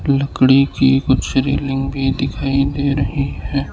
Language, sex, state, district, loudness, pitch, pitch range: Hindi, male, Arunachal Pradesh, Lower Dibang Valley, -17 LUFS, 135 Hz, 135-140 Hz